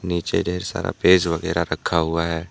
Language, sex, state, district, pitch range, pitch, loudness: Hindi, male, Jharkhand, Deoghar, 85-90 Hz, 85 Hz, -21 LUFS